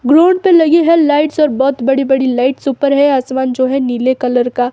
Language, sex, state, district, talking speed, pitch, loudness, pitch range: Hindi, female, Himachal Pradesh, Shimla, 230 wpm, 270 Hz, -12 LUFS, 260-300 Hz